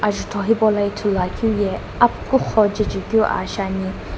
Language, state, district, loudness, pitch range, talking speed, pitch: Sumi, Nagaland, Dimapur, -19 LUFS, 200-220 Hz, 160 wpm, 210 Hz